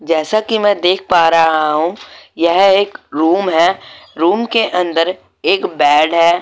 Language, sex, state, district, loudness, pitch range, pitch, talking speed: Hindi, male, Goa, North and South Goa, -13 LUFS, 165-205 Hz, 175 Hz, 160 wpm